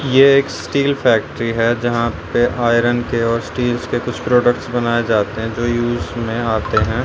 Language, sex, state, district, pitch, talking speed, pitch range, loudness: Hindi, male, Haryana, Rohtak, 120 Hz, 185 wpm, 115-125 Hz, -17 LUFS